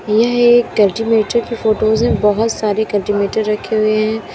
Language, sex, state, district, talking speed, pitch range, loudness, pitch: Hindi, female, Uttar Pradesh, Lalitpur, 165 wpm, 210-225 Hz, -15 LUFS, 220 Hz